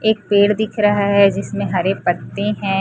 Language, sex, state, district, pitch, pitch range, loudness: Hindi, female, Chhattisgarh, Raipur, 200 Hz, 195-210 Hz, -17 LUFS